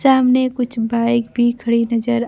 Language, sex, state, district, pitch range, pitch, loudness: Hindi, female, Bihar, Kaimur, 235-250 Hz, 235 Hz, -17 LUFS